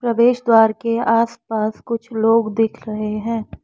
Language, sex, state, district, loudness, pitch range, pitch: Hindi, female, Assam, Kamrup Metropolitan, -18 LUFS, 220-230 Hz, 225 Hz